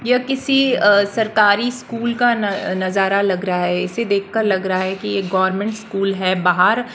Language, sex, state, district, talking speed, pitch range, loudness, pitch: Hindi, female, Maharashtra, Washim, 190 wpm, 190-230 Hz, -18 LUFS, 200 Hz